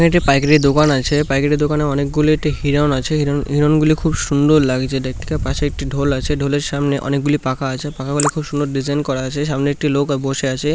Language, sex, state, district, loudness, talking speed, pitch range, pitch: Bengali, male, West Bengal, North 24 Parganas, -17 LUFS, 200 wpm, 140-150 Hz, 145 Hz